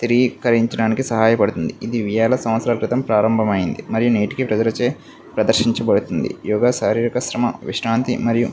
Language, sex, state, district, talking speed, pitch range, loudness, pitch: Telugu, male, Andhra Pradesh, Visakhapatnam, 125 wpm, 110-120 Hz, -19 LUFS, 115 Hz